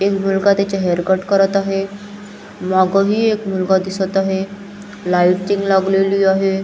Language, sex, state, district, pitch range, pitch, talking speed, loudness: Marathi, female, Maharashtra, Chandrapur, 190-200 Hz, 195 Hz, 135 wpm, -16 LUFS